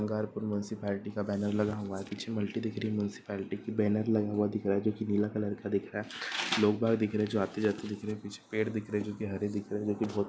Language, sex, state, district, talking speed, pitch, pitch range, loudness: Hindi, female, Bihar, East Champaran, 285 wpm, 105 Hz, 100-110 Hz, -33 LUFS